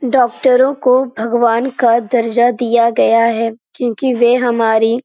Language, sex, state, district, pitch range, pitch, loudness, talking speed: Hindi, female, Bihar, Jamui, 230-250 Hz, 240 Hz, -13 LUFS, 145 wpm